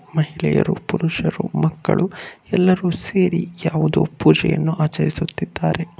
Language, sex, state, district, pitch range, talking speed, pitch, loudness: Kannada, male, Karnataka, Bangalore, 160-185 Hz, 80 wpm, 175 Hz, -19 LUFS